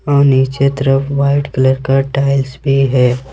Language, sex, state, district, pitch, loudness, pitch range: Hindi, male, Jharkhand, Ranchi, 135 Hz, -13 LUFS, 130-140 Hz